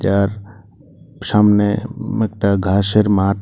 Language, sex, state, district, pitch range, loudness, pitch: Bengali, male, Tripura, West Tripura, 100-105 Hz, -16 LUFS, 105 Hz